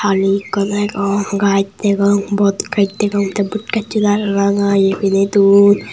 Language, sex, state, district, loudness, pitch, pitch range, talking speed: Chakma, male, Tripura, Unakoti, -15 LUFS, 200 Hz, 200-205 Hz, 120 wpm